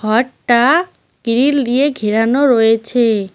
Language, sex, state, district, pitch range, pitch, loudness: Bengali, female, West Bengal, Cooch Behar, 225-270 Hz, 240 Hz, -14 LUFS